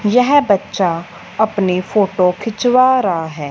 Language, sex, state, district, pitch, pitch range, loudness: Hindi, female, Punjab, Fazilka, 200 Hz, 180-230 Hz, -15 LUFS